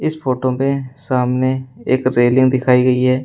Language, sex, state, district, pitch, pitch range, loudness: Hindi, male, Uttar Pradesh, Shamli, 130 Hz, 125-130 Hz, -16 LUFS